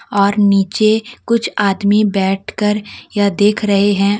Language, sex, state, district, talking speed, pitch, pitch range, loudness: Hindi, female, Jharkhand, Deoghar, 145 wpm, 205 Hz, 200-215 Hz, -15 LUFS